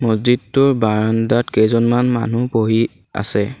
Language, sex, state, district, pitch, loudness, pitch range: Assamese, male, Assam, Sonitpur, 115 Hz, -17 LUFS, 110-120 Hz